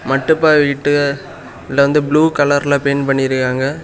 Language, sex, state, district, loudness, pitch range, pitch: Tamil, male, Tamil Nadu, Kanyakumari, -14 LUFS, 135-145 Hz, 140 Hz